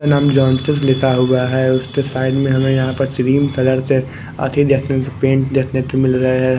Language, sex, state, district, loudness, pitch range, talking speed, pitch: Hindi, male, Bihar, West Champaran, -16 LUFS, 130-135 Hz, 145 wpm, 130 Hz